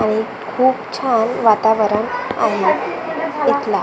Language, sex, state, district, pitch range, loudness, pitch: Marathi, female, Maharashtra, Gondia, 215-245 Hz, -17 LUFS, 220 Hz